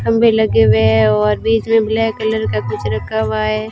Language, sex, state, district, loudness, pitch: Hindi, female, Rajasthan, Bikaner, -15 LUFS, 110 Hz